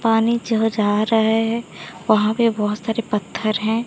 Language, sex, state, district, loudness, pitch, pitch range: Hindi, female, Odisha, Sambalpur, -19 LUFS, 225 Hz, 215-230 Hz